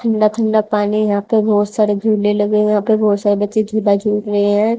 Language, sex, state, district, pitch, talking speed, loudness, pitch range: Hindi, female, Haryana, Jhajjar, 210 Hz, 250 wpm, -15 LUFS, 205-215 Hz